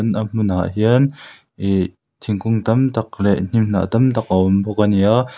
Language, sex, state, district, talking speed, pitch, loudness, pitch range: Mizo, male, Mizoram, Aizawl, 190 wpm, 105 Hz, -18 LUFS, 100-115 Hz